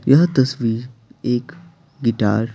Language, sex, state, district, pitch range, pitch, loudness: Hindi, male, Bihar, Patna, 115-150 Hz, 125 Hz, -19 LUFS